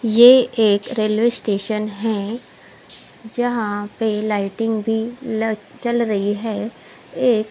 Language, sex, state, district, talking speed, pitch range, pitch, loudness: Hindi, female, Odisha, Khordha, 110 wpm, 210-235 Hz, 220 Hz, -19 LUFS